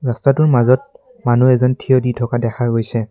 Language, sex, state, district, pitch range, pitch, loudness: Assamese, male, Assam, Kamrup Metropolitan, 120-130 Hz, 125 Hz, -15 LUFS